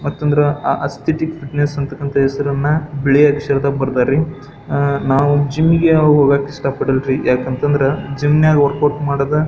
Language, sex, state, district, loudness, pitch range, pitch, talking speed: Kannada, male, Karnataka, Belgaum, -15 LUFS, 140-150 Hz, 140 Hz, 140 wpm